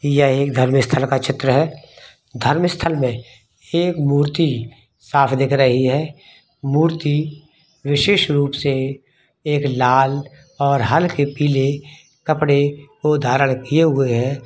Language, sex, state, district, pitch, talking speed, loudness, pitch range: Hindi, male, Bihar, East Champaran, 140 Hz, 130 wpm, -18 LUFS, 135-150 Hz